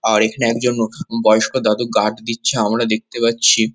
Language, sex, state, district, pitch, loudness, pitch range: Bengali, male, West Bengal, Kolkata, 115 Hz, -17 LUFS, 110-115 Hz